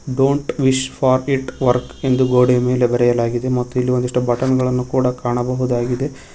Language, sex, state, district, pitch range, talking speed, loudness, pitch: Kannada, male, Karnataka, Koppal, 125-130 Hz, 150 wpm, -18 LUFS, 125 Hz